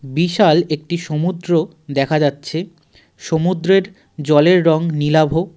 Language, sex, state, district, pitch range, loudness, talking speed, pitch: Bengali, male, West Bengal, Darjeeling, 155-175 Hz, -16 LUFS, 95 wpm, 160 Hz